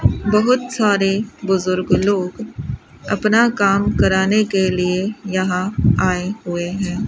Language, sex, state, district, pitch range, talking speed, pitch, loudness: Hindi, female, Rajasthan, Bikaner, 185-210 Hz, 110 wpm, 195 Hz, -18 LUFS